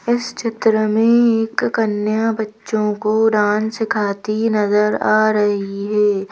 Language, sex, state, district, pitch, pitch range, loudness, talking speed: Hindi, female, Madhya Pradesh, Bhopal, 215 Hz, 210-225 Hz, -17 LUFS, 125 wpm